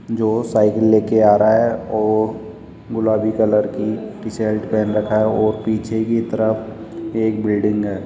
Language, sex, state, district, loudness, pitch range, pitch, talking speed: Hindi, male, Rajasthan, Jaipur, -18 LUFS, 105-110 Hz, 110 Hz, 165 wpm